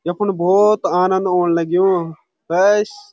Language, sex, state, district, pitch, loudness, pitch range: Garhwali, male, Uttarakhand, Uttarkashi, 185 Hz, -16 LUFS, 175-205 Hz